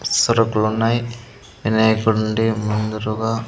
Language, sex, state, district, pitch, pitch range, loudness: Telugu, male, Andhra Pradesh, Sri Satya Sai, 110 Hz, 110-115 Hz, -19 LUFS